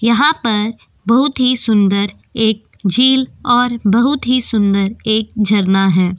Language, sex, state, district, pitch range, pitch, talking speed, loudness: Hindi, female, Goa, North and South Goa, 200-250 Hz, 225 Hz, 135 wpm, -14 LUFS